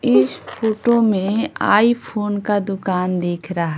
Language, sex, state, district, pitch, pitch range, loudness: Hindi, female, Bihar, Patna, 205 Hz, 180-220 Hz, -18 LUFS